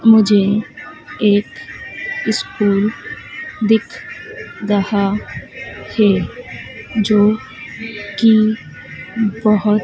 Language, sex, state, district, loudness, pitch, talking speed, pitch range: Hindi, female, Madhya Pradesh, Dhar, -16 LUFS, 215 Hz, 55 wpm, 205-225 Hz